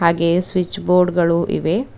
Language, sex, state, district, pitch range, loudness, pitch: Kannada, female, Karnataka, Bidar, 170-180 Hz, -17 LUFS, 175 Hz